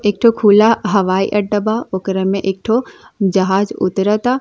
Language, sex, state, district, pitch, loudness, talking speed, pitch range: Bhojpuri, female, Uttar Pradesh, Ghazipur, 205 Hz, -15 LUFS, 135 wpm, 195-220 Hz